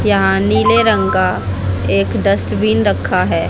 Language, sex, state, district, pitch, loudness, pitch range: Hindi, female, Haryana, Jhajjar, 95 Hz, -14 LUFS, 95-105 Hz